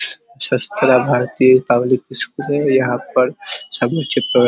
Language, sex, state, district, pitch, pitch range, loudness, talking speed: Hindi, male, Bihar, Vaishali, 130 Hz, 125-140 Hz, -16 LUFS, 105 wpm